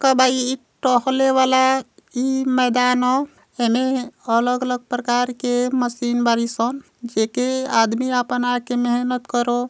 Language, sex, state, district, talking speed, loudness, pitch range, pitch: Bhojpuri, female, Uttar Pradesh, Gorakhpur, 135 wpm, -20 LUFS, 240-260 Hz, 250 Hz